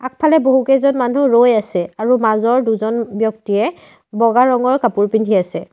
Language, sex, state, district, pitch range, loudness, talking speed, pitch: Assamese, female, Assam, Sonitpur, 220-255 Hz, -15 LUFS, 145 wpm, 235 Hz